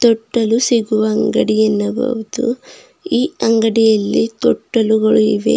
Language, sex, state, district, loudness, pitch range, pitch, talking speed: Kannada, female, Karnataka, Bidar, -15 LUFS, 215-235 Hz, 225 Hz, 85 wpm